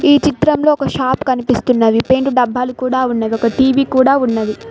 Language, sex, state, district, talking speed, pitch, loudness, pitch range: Telugu, female, Telangana, Mahabubabad, 155 wpm, 255 Hz, -14 LUFS, 245-275 Hz